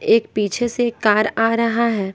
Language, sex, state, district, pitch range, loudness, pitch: Hindi, female, Bihar, West Champaran, 210-235 Hz, -18 LUFS, 225 Hz